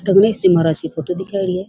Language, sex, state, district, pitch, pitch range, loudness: Rajasthani, female, Rajasthan, Churu, 185 Hz, 165-195 Hz, -17 LUFS